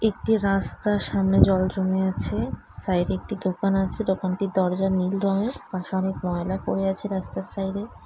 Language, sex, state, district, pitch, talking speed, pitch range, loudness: Bengali, female, West Bengal, Dakshin Dinajpur, 190 Hz, 170 wpm, 185-195 Hz, -25 LUFS